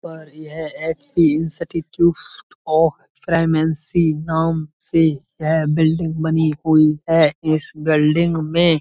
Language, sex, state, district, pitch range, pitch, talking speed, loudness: Hindi, male, Uttar Pradesh, Budaun, 155-165 Hz, 160 Hz, 115 wpm, -18 LUFS